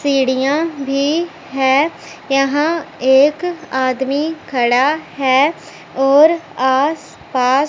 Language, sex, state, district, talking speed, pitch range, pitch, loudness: Hindi, female, Punjab, Pathankot, 85 wpm, 265-305 Hz, 275 Hz, -16 LUFS